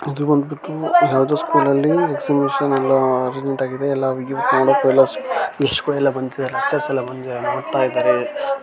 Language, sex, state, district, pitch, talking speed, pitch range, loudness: Kannada, male, Karnataka, Shimoga, 135 Hz, 110 wpm, 130-145 Hz, -18 LUFS